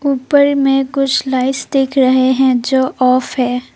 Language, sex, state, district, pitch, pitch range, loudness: Hindi, female, Assam, Kamrup Metropolitan, 265 Hz, 255-275 Hz, -13 LUFS